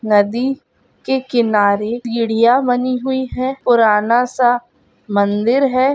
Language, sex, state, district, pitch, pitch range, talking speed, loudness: Hindi, female, Chhattisgarh, Bilaspur, 240 Hz, 220-255 Hz, 110 wpm, -16 LUFS